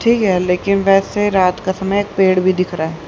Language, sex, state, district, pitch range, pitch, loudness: Hindi, female, Haryana, Rohtak, 180-200 Hz, 190 Hz, -15 LUFS